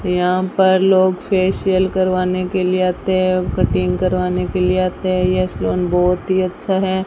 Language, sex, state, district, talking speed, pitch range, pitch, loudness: Hindi, female, Rajasthan, Bikaner, 180 wpm, 180-185 Hz, 185 Hz, -17 LUFS